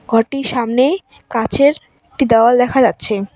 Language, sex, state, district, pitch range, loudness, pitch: Bengali, female, West Bengal, Cooch Behar, 230-275 Hz, -15 LUFS, 250 Hz